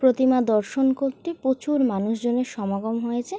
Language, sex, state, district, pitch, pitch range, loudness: Bengali, female, West Bengal, Jalpaiguri, 255 Hz, 230-265 Hz, -23 LUFS